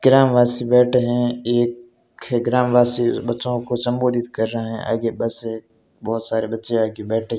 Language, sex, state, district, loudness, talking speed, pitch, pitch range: Hindi, male, Rajasthan, Barmer, -20 LUFS, 160 wpm, 120 Hz, 115-120 Hz